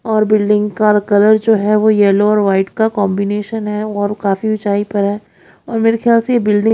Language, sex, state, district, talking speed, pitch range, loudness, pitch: Hindi, female, Haryana, Jhajjar, 205 wpm, 205-220 Hz, -14 LUFS, 210 Hz